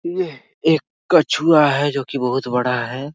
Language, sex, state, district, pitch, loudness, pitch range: Hindi, male, Bihar, Araria, 145 Hz, -18 LUFS, 130-160 Hz